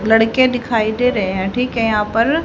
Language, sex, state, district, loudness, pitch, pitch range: Hindi, female, Haryana, Rohtak, -16 LUFS, 230 Hz, 215-250 Hz